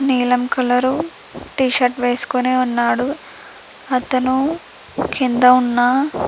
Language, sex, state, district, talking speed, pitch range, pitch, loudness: Telugu, female, Andhra Pradesh, Chittoor, 85 wpm, 250-265 Hz, 255 Hz, -17 LUFS